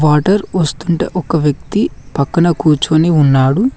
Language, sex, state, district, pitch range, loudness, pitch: Telugu, male, Telangana, Mahabubabad, 150-175 Hz, -14 LUFS, 160 Hz